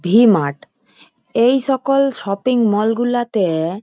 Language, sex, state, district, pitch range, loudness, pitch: Bengali, female, West Bengal, Purulia, 195-250 Hz, -16 LUFS, 225 Hz